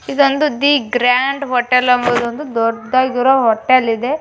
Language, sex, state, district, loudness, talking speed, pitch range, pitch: Kannada, female, Karnataka, Bijapur, -14 LUFS, 130 wpm, 245-275 Hz, 255 Hz